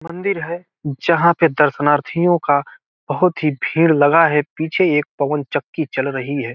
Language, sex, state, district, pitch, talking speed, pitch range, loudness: Hindi, male, Bihar, Gopalganj, 155 Hz, 155 wpm, 145-170 Hz, -17 LUFS